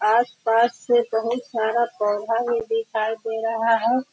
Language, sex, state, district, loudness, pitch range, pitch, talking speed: Hindi, female, Bihar, Sitamarhi, -22 LUFS, 225-235 Hz, 230 Hz, 145 wpm